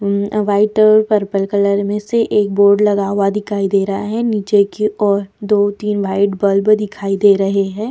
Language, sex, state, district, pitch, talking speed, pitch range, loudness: Hindi, female, Bihar, Vaishali, 205 Hz, 195 wpm, 200-210 Hz, -15 LUFS